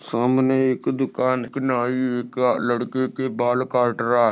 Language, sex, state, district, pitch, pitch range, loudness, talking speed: Hindi, male, Maharashtra, Sindhudurg, 125 Hz, 120-130 Hz, -22 LUFS, 140 wpm